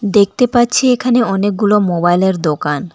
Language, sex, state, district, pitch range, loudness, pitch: Bengali, female, West Bengal, Alipurduar, 180-240 Hz, -13 LUFS, 205 Hz